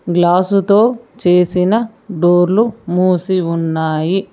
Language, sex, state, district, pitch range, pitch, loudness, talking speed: Telugu, female, Telangana, Mahabubabad, 175-205 Hz, 185 Hz, -14 LUFS, 70 wpm